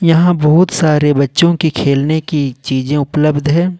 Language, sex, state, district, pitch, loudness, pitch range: Hindi, male, Jharkhand, Ranchi, 155 Hz, -13 LUFS, 145-170 Hz